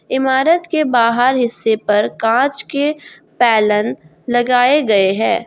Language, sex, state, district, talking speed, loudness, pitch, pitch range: Hindi, female, Jharkhand, Garhwa, 120 wpm, -15 LUFS, 240 Hz, 220-270 Hz